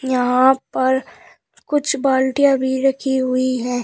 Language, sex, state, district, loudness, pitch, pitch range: Hindi, female, Uttar Pradesh, Shamli, -18 LUFS, 260 Hz, 255-270 Hz